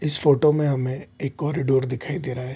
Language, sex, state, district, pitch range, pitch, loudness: Hindi, male, Bihar, Vaishali, 130-150 Hz, 135 Hz, -23 LUFS